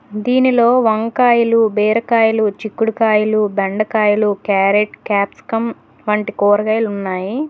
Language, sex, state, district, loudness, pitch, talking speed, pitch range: Telugu, female, Telangana, Hyderabad, -15 LUFS, 215 Hz, 80 wpm, 205-230 Hz